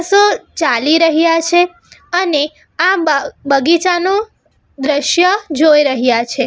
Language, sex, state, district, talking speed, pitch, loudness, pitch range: Gujarati, female, Gujarat, Valsad, 110 wpm, 330 Hz, -13 LUFS, 295-360 Hz